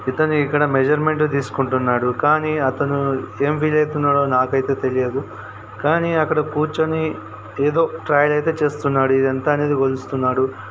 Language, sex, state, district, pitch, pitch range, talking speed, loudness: Telugu, male, Telangana, Karimnagar, 140 Hz, 130-150 Hz, 125 wpm, -19 LUFS